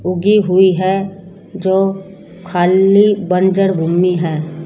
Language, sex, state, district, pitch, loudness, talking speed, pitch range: Hindi, female, Rajasthan, Jaipur, 190 Hz, -14 LUFS, 105 wpm, 180-195 Hz